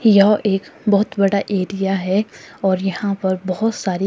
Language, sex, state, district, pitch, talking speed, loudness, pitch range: Hindi, female, Himachal Pradesh, Shimla, 195 Hz, 160 wpm, -18 LUFS, 190-205 Hz